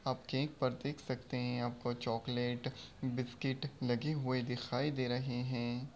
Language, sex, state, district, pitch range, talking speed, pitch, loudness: Hindi, male, Uttar Pradesh, Budaun, 120-135 Hz, 160 wpm, 125 Hz, -38 LUFS